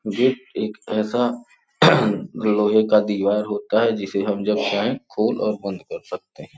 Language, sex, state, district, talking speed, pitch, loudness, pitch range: Hindi, male, Uttar Pradesh, Gorakhpur, 165 wpm, 105 Hz, -21 LUFS, 105-115 Hz